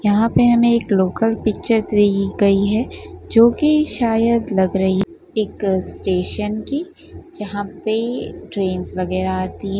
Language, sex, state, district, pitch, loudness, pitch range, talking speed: Hindi, female, Gujarat, Gandhinagar, 210 Hz, -17 LUFS, 195-230 Hz, 135 wpm